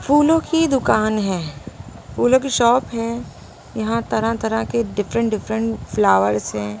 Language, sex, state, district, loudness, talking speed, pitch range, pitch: Hindi, female, Punjab, Pathankot, -19 LUFS, 130 wpm, 150-235 Hz, 220 Hz